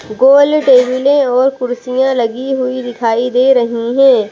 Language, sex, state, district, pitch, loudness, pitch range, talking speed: Hindi, female, Madhya Pradesh, Bhopal, 255 Hz, -12 LUFS, 245-265 Hz, 140 wpm